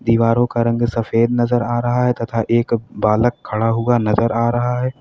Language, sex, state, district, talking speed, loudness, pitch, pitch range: Hindi, male, Uttar Pradesh, Lalitpur, 205 wpm, -17 LUFS, 115 Hz, 115-120 Hz